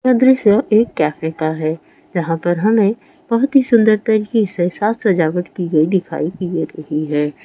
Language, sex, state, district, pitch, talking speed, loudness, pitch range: Hindi, female, Rajasthan, Churu, 180 Hz, 175 wpm, -16 LUFS, 160-220 Hz